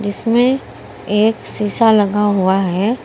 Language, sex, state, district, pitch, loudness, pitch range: Hindi, female, Uttar Pradesh, Saharanpur, 210 Hz, -15 LUFS, 200-225 Hz